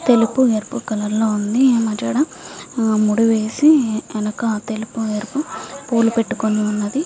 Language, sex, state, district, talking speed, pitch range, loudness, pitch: Telugu, female, Andhra Pradesh, Visakhapatnam, 110 wpm, 215-250 Hz, -18 LUFS, 225 Hz